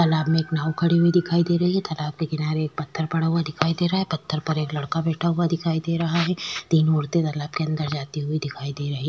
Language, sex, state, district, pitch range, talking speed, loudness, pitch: Hindi, female, Chhattisgarh, Sukma, 155-170 Hz, 275 wpm, -23 LUFS, 160 Hz